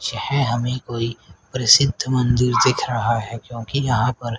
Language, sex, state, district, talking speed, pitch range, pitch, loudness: Hindi, female, Haryana, Rohtak, 150 wpm, 115-125 Hz, 120 Hz, -19 LUFS